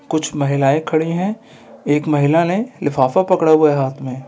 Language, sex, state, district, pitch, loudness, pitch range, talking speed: Hindi, male, Bihar, Kishanganj, 155 Hz, -16 LUFS, 140-170 Hz, 195 wpm